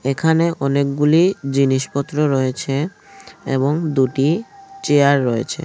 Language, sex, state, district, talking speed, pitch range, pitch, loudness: Bengali, male, Tripura, Unakoti, 85 wpm, 135-165 Hz, 145 Hz, -18 LUFS